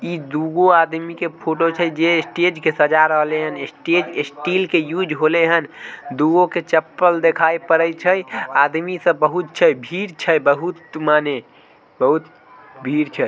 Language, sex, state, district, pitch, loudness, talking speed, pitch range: Maithili, male, Bihar, Samastipur, 165 Hz, -18 LUFS, 160 wpm, 155-175 Hz